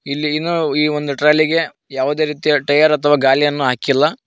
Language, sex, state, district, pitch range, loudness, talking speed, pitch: Kannada, male, Karnataka, Koppal, 140-155 Hz, -16 LUFS, 155 wpm, 150 Hz